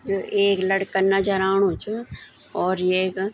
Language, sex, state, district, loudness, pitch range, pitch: Garhwali, female, Uttarakhand, Tehri Garhwal, -22 LUFS, 190-195 Hz, 195 Hz